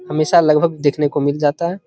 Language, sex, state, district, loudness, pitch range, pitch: Hindi, male, Bihar, Begusarai, -16 LUFS, 145-170 Hz, 155 Hz